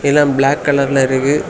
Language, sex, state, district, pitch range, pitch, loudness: Tamil, male, Tamil Nadu, Kanyakumari, 135-145 Hz, 140 Hz, -14 LUFS